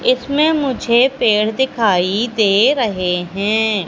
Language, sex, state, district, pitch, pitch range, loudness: Hindi, female, Madhya Pradesh, Katni, 220 Hz, 200-250 Hz, -15 LUFS